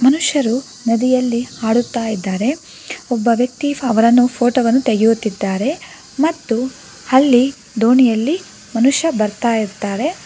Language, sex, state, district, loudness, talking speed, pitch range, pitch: Kannada, female, Karnataka, Bangalore, -16 LUFS, 95 wpm, 225-265 Hz, 245 Hz